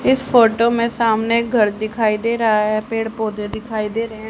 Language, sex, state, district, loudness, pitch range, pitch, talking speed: Hindi, female, Haryana, Jhajjar, -18 LUFS, 215-230 Hz, 225 Hz, 210 wpm